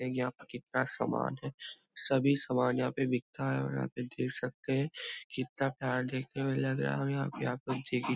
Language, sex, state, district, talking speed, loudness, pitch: Hindi, male, Bihar, Muzaffarpur, 235 wpm, -34 LUFS, 125 Hz